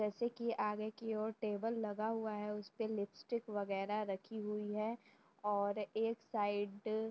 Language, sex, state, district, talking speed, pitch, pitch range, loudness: Hindi, female, Uttar Pradesh, Jyotiba Phule Nagar, 160 wpm, 215 Hz, 205-225 Hz, -41 LUFS